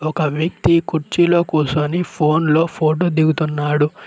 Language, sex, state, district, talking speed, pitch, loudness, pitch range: Telugu, male, Telangana, Mahabubabad, 120 wpm, 155 Hz, -17 LUFS, 150-165 Hz